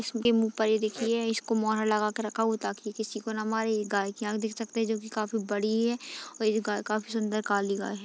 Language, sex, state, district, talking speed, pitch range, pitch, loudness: Hindi, female, Chhattisgarh, Rajnandgaon, 275 wpm, 215-225 Hz, 220 Hz, -29 LUFS